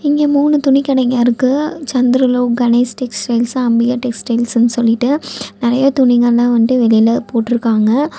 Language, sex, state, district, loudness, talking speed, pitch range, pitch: Tamil, female, Tamil Nadu, Nilgiris, -13 LUFS, 115 wpm, 235-270 Hz, 245 Hz